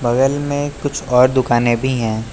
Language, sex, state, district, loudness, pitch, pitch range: Hindi, male, Uttar Pradesh, Lucknow, -16 LUFS, 130 Hz, 120-140 Hz